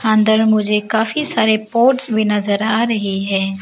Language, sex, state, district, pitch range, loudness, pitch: Hindi, female, Arunachal Pradesh, Lower Dibang Valley, 210-225 Hz, -15 LUFS, 220 Hz